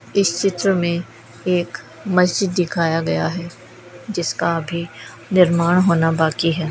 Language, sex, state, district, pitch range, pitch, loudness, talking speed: Hindi, female, Rajasthan, Bikaner, 165-180 Hz, 170 Hz, -19 LUFS, 125 wpm